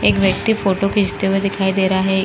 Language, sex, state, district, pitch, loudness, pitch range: Hindi, female, Uttar Pradesh, Gorakhpur, 195 Hz, -17 LUFS, 190-195 Hz